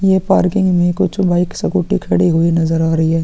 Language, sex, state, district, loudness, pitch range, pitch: Hindi, male, Chhattisgarh, Sukma, -15 LUFS, 165-190 Hz, 175 Hz